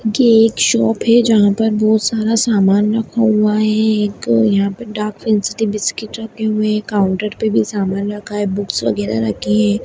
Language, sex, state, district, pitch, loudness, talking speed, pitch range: Hindi, female, Bihar, Darbhanga, 210 Hz, -15 LUFS, 190 wpm, 200-220 Hz